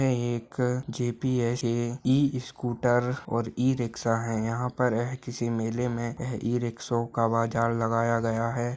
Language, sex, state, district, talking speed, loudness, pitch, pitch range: Hindi, male, Uttar Pradesh, Ghazipur, 135 wpm, -28 LUFS, 120 Hz, 115-125 Hz